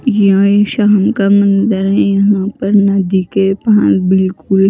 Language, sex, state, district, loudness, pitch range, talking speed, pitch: Hindi, female, Maharashtra, Mumbai Suburban, -11 LUFS, 195-205 Hz, 140 wpm, 200 Hz